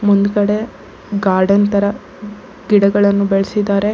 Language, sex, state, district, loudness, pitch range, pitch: Kannada, female, Karnataka, Bangalore, -15 LUFS, 200-205 Hz, 200 Hz